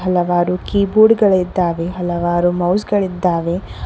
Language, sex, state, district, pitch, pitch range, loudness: Kannada, female, Karnataka, Koppal, 180 Hz, 175-195 Hz, -16 LUFS